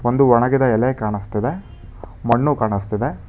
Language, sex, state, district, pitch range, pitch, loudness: Kannada, male, Karnataka, Bangalore, 105-130 Hz, 120 Hz, -18 LUFS